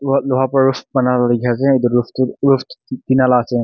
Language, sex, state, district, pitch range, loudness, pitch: Nagamese, male, Nagaland, Kohima, 120-135 Hz, -15 LUFS, 130 Hz